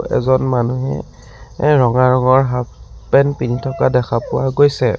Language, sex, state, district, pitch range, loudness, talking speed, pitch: Assamese, male, Assam, Sonitpur, 125-135 Hz, -15 LUFS, 145 wpm, 130 Hz